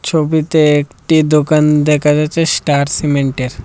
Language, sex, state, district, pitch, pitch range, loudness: Bengali, male, Tripura, Dhalai, 150 Hz, 145-155 Hz, -13 LUFS